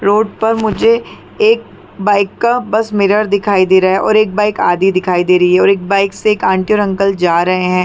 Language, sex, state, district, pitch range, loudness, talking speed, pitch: Hindi, female, Chhattisgarh, Rajnandgaon, 185-215 Hz, -12 LUFS, 245 wpm, 200 Hz